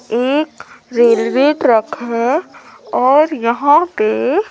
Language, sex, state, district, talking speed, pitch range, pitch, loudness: Hindi, female, Madhya Pradesh, Umaria, 95 wpm, 235-305 Hz, 270 Hz, -14 LUFS